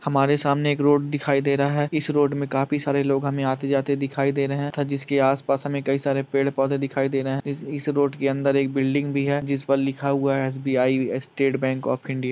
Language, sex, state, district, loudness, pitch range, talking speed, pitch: Hindi, male, Andhra Pradesh, Krishna, -23 LUFS, 135-140 Hz, 240 wpm, 140 Hz